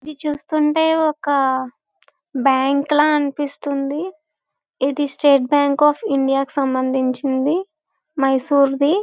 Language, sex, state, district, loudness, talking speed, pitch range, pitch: Telugu, female, Andhra Pradesh, Visakhapatnam, -18 LUFS, 100 wpm, 270-300 Hz, 285 Hz